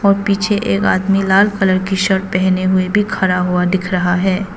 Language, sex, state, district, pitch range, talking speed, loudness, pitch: Hindi, female, Arunachal Pradesh, Papum Pare, 185-195 Hz, 195 wpm, -15 LUFS, 190 Hz